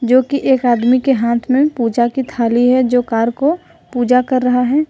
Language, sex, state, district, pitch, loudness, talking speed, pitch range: Hindi, female, Jharkhand, Ranchi, 250 Hz, -14 LUFS, 220 wpm, 240-265 Hz